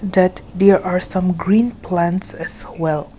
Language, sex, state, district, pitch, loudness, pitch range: English, female, Nagaland, Kohima, 185 Hz, -17 LUFS, 180-195 Hz